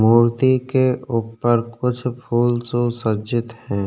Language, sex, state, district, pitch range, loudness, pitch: Hindi, male, Uttarakhand, Tehri Garhwal, 115-125 Hz, -20 LUFS, 120 Hz